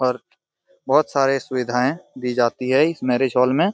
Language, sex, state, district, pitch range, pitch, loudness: Hindi, male, Jharkhand, Jamtara, 125-140 Hz, 130 Hz, -20 LUFS